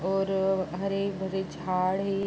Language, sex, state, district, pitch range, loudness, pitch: Hindi, female, Uttar Pradesh, Jalaun, 190-195 Hz, -29 LUFS, 190 Hz